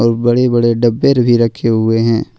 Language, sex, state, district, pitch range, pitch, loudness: Hindi, male, Jharkhand, Ranchi, 115-120 Hz, 115 Hz, -13 LUFS